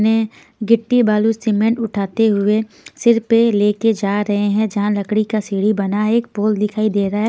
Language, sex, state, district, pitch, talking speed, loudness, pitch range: Hindi, female, Punjab, Pathankot, 215 Hz, 190 wpm, -17 LUFS, 205-225 Hz